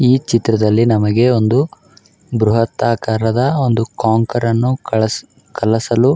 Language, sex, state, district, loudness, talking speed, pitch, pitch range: Kannada, male, Karnataka, Raichur, -15 LUFS, 115 wpm, 115 Hz, 110-125 Hz